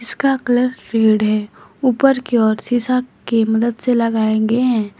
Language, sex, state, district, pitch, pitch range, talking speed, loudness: Hindi, female, Jharkhand, Garhwa, 235 Hz, 220-255 Hz, 170 wpm, -17 LUFS